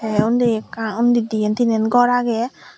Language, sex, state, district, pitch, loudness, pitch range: Chakma, female, Tripura, Dhalai, 230 Hz, -18 LUFS, 220-240 Hz